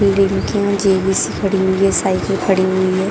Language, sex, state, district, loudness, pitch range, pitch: Hindi, female, Jharkhand, Jamtara, -16 LUFS, 190-195 Hz, 190 Hz